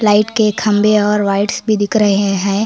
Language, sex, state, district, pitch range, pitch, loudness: Hindi, female, Karnataka, Koppal, 200-215 Hz, 210 Hz, -14 LUFS